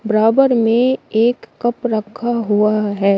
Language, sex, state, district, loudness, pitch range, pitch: Hindi, female, Uttar Pradesh, Shamli, -16 LUFS, 215-240 Hz, 225 Hz